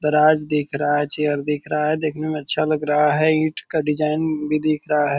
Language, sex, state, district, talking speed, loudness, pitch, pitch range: Hindi, male, Bihar, Purnia, 245 wpm, -20 LUFS, 150 Hz, 150-155 Hz